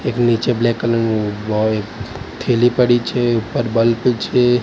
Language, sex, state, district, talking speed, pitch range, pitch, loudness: Gujarati, male, Gujarat, Gandhinagar, 170 wpm, 110-120 Hz, 115 Hz, -17 LUFS